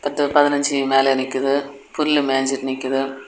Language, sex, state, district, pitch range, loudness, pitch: Tamil, female, Tamil Nadu, Kanyakumari, 135-145 Hz, -19 LUFS, 135 Hz